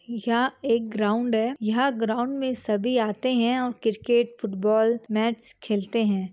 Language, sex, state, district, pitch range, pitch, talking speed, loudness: Hindi, female, Chhattisgarh, Bastar, 220-245 Hz, 230 Hz, 150 wpm, -25 LUFS